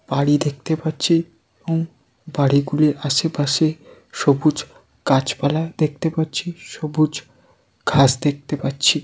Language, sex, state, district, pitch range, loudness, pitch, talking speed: Bengali, male, West Bengal, Jalpaiguri, 140-160 Hz, -20 LUFS, 150 Hz, 100 wpm